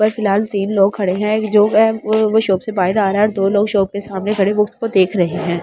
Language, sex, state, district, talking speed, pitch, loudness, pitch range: Hindi, male, Delhi, New Delhi, 255 wpm, 205 Hz, -16 LUFS, 195-215 Hz